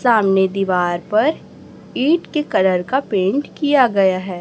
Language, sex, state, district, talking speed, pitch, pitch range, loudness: Hindi, male, Chhattisgarh, Raipur, 150 wpm, 205 Hz, 190-280 Hz, -17 LUFS